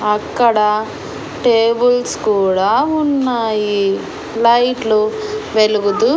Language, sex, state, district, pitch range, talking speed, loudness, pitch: Telugu, female, Andhra Pradesh, Annamaya, 210-245 Hz, 70 wpm, -15 LUFS, 225 Hz